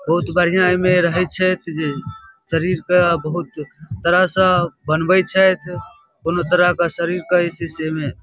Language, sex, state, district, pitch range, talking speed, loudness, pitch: Maithili, male, Bihar, Darbhanga, 155-180 Hz, 160 wpm, -17 LUFS, 170 Hz